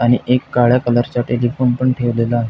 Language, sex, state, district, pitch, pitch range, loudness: Marathi, male, Maharashtra, Pune, 120 Hz, 120-125 Hz, -16 LUFS